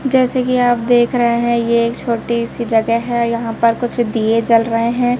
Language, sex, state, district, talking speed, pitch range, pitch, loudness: Hindi, male, Madhya Pradesh, Bhopal, 220 wpm, 230-240 Hz, 235 Hz, -15 LUFS